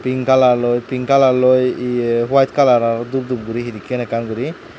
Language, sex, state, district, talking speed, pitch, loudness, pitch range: Chakma, male, Tripura, Dhalai, 200 wpm, 125 Hz, -16 LUFS, 120-130 Hz